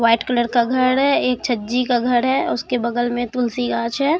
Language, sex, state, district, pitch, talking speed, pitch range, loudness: Hindi, male, Bihar, Katihar, 245 Hz, 230 wpm, 235-255 Hz, -19 LUFS